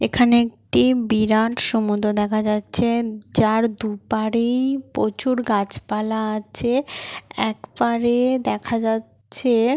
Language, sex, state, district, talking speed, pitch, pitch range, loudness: Bengali, female, West Bengal, Paschim Medinipur, 85 wpm, 225 Hz, 215-240 Hz, -20 LUFS